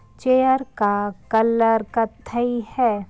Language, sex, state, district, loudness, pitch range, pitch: Hindi, female, Uttar Pradesh, Ghazipur, -21 LUFS, 215-245 Hz, 230 Hz